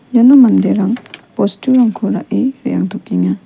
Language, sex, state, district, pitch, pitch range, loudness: Garo, female, Meghalaya, West Garo Hills, 235 Hz, 200-255 Hz, -13 LUFS